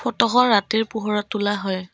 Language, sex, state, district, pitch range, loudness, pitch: Assamese, female, Assam, Kamrup Metropolitan, 205-220 Hz, -20 LUFS, 210 Hz